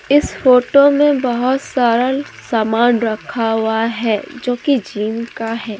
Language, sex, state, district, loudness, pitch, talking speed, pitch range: Hindi, female, Jharkhand, Deoghar, -16 LUFS, 240 Hz, 145 wpm, 225-270 Hz